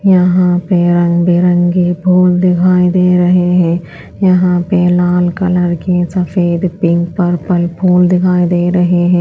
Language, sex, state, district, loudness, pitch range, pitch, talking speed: Hindi, female, Chhattisgarh, Raipur, -11 LUFS, 175-180 Hz, 180 Hz, 135 wpm